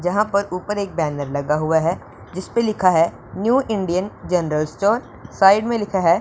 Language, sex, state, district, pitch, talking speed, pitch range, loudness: Hindi, male, Punjab, Pathankot, 185 Hz, 185 wpm, 165-205 Hz, -20 LUFS